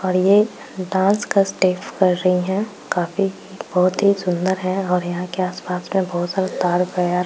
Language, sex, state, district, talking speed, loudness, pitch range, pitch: Hindi, female, Bihar, Bhagalpur, 180 wpm, -20 LUFS, 180-195 Hz, 185 Hz